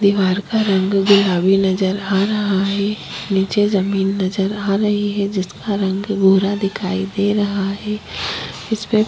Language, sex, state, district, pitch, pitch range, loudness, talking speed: Hindi, female, Chhattisgarh, Kabirdham, 200 Hz, 195-205 Hz, -18 LUFS, 145 wpm